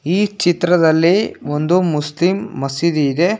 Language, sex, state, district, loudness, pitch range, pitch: Kannada, male, Karnataka, Bangalore, -16 LUFS, 150-180 Hz, 175 Hz